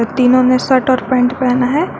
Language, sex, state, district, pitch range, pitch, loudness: Hindi, female, Jharkhand, Garhwa, 250-260 Hz, 255 Hz, -13 LUFS